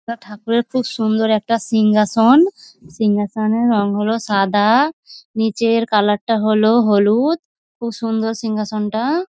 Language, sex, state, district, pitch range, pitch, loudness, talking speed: Bengali, female, West Bengal, North 24 Parganas, 215-235 Hz, 225 Hz, -16 LUFS, 115 wpm